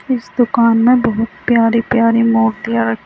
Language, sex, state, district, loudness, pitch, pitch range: Hindi, female, Uttar Pradesh, Saharanpur, -14 LUFS, 230 Hz, 225-245 Hz